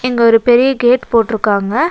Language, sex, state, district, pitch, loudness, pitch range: Tamil, female, Tamil Nadu, Nilgiris, 240 Hz, -12 LUFS, 225-250 Hz